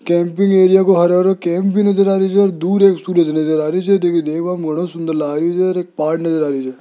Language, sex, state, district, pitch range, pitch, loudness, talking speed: Hindi, male, Rajasthan, Jaipur, 160-190 Hz, 175 Hz, -15 LUFS, 195 wpm